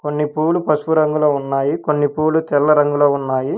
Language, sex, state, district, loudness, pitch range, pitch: Telugu, male, Telangana, Hyderabad, -17 LUFS, 145-155 Hz, 150 Hz